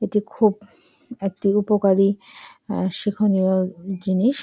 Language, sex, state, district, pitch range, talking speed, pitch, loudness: Bengali, female, West Bengal, Jalpaiguri, 190-215 Hz, 95 wpm, 205 Hz, -21 LUFS